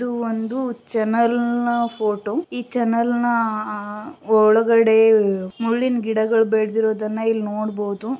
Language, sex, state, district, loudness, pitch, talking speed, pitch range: Kannada, female, Karnataka, Shimoga, -20 LUFS, 225 Hz, 110 wpm, 215-235 Hz